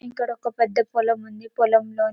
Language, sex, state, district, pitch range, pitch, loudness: Telugu, female, Telangana, Karimnagar, 225-240 Hz, 230 Hz, -22 LUFS